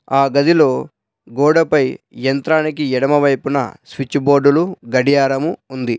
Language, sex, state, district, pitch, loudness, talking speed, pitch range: Telugu, male, Telangana, Adilabad, 140 Hz, -16 LUFS, 100 wpm, 130-145 Hz